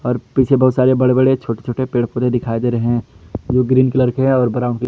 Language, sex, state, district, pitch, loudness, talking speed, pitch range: Hindi, male, Jharkhand, Palamu, 125 Hz, -16 LUFS, 245 wpm, 120-130 Hz